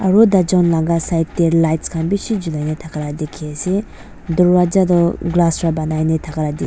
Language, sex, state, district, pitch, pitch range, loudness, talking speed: Nagamese, female, Nagaland, Dimapur, 165 Hz, 155-180 Hz, -17 LUFS, 215 wpm